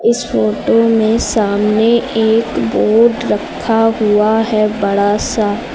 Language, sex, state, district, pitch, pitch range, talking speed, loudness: Hindi, female, Uttar Pradesh, Lucknow, 220 Hz, 210-230 Hz, 115 wpm, -13 LUFS